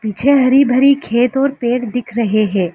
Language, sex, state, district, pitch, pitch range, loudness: Hindi, female, Arunachal Pradesh, Lower Dibang Valley, 245 Hz, 220-270 Hz, -14 LUFS